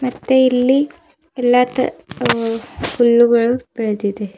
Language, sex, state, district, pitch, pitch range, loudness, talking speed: Kannada, female, Karnataka, Bidar, 245 Hz, 230-255 Hz, -16 LUFS, 95 wpm